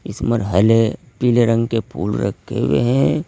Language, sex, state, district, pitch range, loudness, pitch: Hindi, male, Uttar Pradesh, Saharanpur, 115-120 Hz, -18 LUFS, 115 Hz